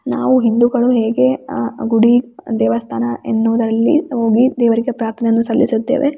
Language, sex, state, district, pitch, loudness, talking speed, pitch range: Kannada, female, Karnataka, Raichur, 230 Hz, -15 LUFS, 105 wpm, 225-245 Hz